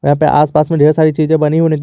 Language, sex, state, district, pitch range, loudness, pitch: Hindi, male, Jharkhand, Garhwa, 150-155 Hz, -12 LUFS, 155 Hz